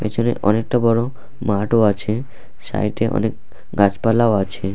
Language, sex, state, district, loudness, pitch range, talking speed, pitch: Bengali, male, West Bengal, Purulia, -19 LUFS, 100-115 Hz, 125 wpm, 110 Hz